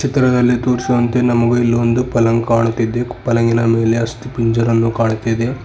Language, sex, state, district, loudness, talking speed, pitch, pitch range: Kannada, male, Karnataka, Bidar, -15 LUFS, 115 wpm, 115 Hz, 115-125 Hz